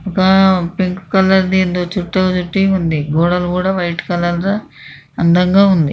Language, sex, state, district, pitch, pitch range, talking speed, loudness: Telugu, female, Andhra Pradesh, Krishna, 185 Hz, 175-190 Hz, 160 wpm, -14 LUFS